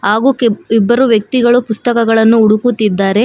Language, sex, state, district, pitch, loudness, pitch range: Kannada, female, Karnataka, Bangalore, 225 Hz, -11 LUFS, 215-240 Hz